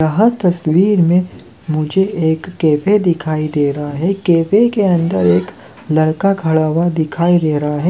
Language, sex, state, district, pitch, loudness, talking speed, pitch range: Hindi, male, Chhattisgarh, Rajnandgaon, 165 Hz, -14 LUFS, 160 wpm, 155-185 Hz